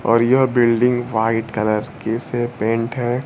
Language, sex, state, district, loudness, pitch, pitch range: Hindi, male, Bihar, Kaimur, -18 LUFS, 120 Hz, 115-125 Hz